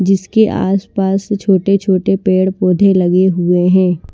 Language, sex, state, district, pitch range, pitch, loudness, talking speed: Hindi, female, Maharashtra, Washim, 185-195 Hz, 190 Hz, -13 LUFS, 100 wpm